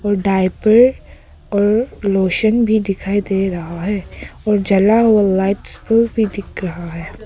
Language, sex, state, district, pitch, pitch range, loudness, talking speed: Hindi, female, Arunachal Pradesh, Papum Pare, 200 Hz, 190-220 Hz, -16 LUFS, 140 wpm